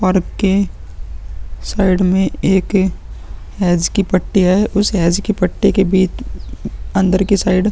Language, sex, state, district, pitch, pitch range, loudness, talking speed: Hindi, male, Uttar Pradesh, Muzaffarnagar, 185 Hz, 170-195 Hz, -15 LUFS, 150 wpm